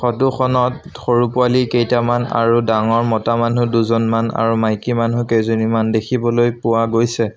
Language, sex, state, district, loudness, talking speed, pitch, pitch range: Assamese, male, Assam, Sonitpur, -16 LUFS, 130 wpm, 115 Hz, 115-120 Hz